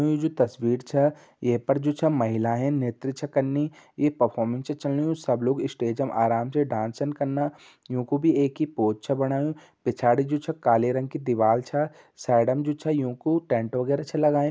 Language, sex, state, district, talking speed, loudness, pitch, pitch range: Garhwali, male, Uttarakhand, Uttarkashi, 205 wpm, -25 LUFS, 140 Hz, 120-150 Hz